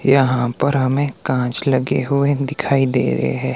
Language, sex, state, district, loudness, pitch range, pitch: Hindi, male, Himachal Pradesh, Shimla, -18 LUFS, 130-140 Hz, 135 Hz